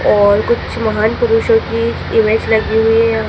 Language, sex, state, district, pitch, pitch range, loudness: Hindi, female, Madhya Pradesh, Dhar, 225 Hz, 220-235 Hz, -13 LUFS